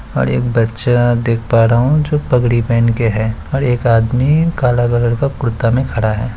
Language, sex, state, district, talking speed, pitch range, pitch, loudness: Hindi, male, Bihar, Kishanganj, 205 wpm, 115-125 Hz, 120 Hz, -14 LUFS